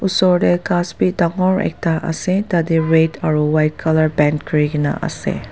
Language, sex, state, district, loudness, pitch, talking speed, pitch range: Nagamese, female, Nagaland, Dimapur, -17 LUFS, 165 Hz, 165 wpm, 155-180 Hz